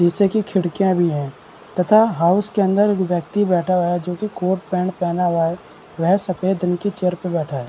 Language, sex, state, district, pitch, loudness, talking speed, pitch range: Hindi, male, Chhattisgarh, Balrampur, 180 Hz, -19 LUFS, 225 wpm, 175-195 Hz